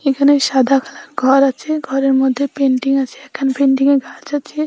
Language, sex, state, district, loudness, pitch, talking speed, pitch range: Bengali, female, West Bengal, North 24 Parganas, -15 LUFS, 275 Hz, 180 wpm, 265-280 Hz